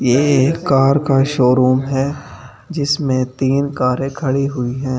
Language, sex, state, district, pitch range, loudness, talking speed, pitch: Hindi, male, Delhi, New Delhi, 130-140 Hz, -16 LUFS, 130 wpm, 135 Hz